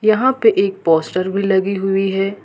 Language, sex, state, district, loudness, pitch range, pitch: Hindi, female, Jharkhand, Ranchi, -16 LUFS, 190-200 Hz, 195 Hz